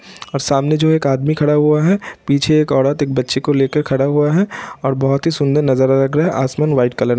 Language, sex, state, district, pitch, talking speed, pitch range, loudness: Hindi, male, Bihar, Vaishali, 140 Hz, 265 wpm, 135-150 Hz, -15 LUFS